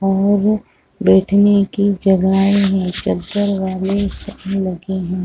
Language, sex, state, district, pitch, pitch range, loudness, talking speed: Hindi, female, Chhattisgarh, Raigarh, 195 Hz, 190-200 Hz, -16 LUFS, 115 wpm